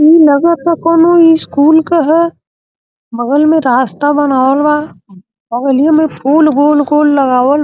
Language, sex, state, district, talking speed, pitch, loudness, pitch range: Bhojpuri, male, Uttar Pradesh, Gorakhpur, 140 wpm, 295 Hz, -10 LUFS, 265-320 Hz